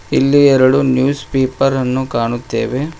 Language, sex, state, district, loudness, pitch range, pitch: Kannada, male, Karnataka, Koppal, -14 LUFS, 130-140 Hz, 130 Hz